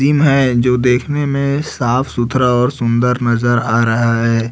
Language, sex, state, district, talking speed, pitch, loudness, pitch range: Hindi, male, Chhattisgarh, Raipur, 170 wpm, 125 Hz, -14 LUFS, 120-135 Hz